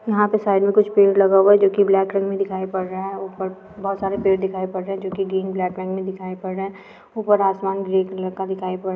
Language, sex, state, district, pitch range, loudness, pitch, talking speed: Hindi, female, Bihar, Araria, 190-195 Hz, -20 LUFS, 195 Hz, 310 wpm